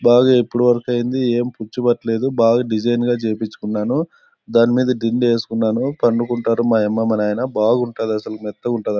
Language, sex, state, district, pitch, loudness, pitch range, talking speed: Telugu, male, Andhra Pradesh, Anantapur, 120 Hz, -18 LUFS, 110-120 Hz, 165 wpm